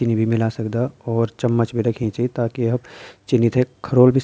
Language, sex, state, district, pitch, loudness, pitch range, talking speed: Garhwali, male, Uttarakhand, Tehri Garhwal, 120 Hz, -20 LUFS, 115-125 Hz, 225 wpm